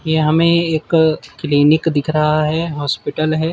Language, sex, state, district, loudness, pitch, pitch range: Hindi, male, Uttar Pradesh, Jyotiba Phule Nagar, -16 LUFS, 155 Hz, 155-160 Hz